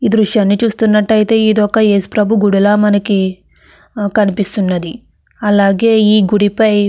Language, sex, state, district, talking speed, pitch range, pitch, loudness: Telugu, female, Andhra Pradesh, Krishna, 115 wpm, 200-220 Hz, 210 Hz, -12 LUFS